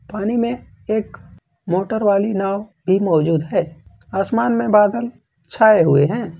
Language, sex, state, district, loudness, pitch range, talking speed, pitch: Hindi, male, Jharkhand, Ranchi, -18 LUFS, 165-220 Hz, 140 wpm, 200 Hz